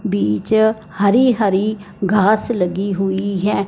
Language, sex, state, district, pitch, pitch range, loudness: Hindi, male, Punjab, Fazilka, 200 Hz, 195-215 Hz, -17 LUFS